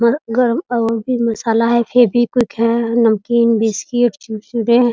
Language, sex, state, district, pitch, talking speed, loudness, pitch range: Hindi, female, Bihar, Muzaffarpur, 235 Hz, 145 wpm, -15 LUFS, 230-240 Hz